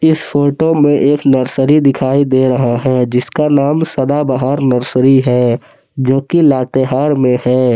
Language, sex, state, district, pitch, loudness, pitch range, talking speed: Hindi, male, Jharkhand, Palamu, 135 Hz, -12 LUFS, 130-145 Hz, 145 wpm